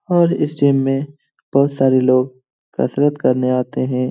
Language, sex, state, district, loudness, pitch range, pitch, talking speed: Hindi, male, Bihar, Lakhisarai, -17 LUFS, 130-145 Hz, 135 Hz, 175 wpm